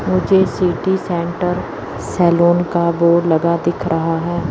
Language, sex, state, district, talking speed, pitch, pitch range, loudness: Hindi, female, Chandigarh, Chandigarh, 135 wpm, 170 Hz, 170-180 Hz, -16 LUFS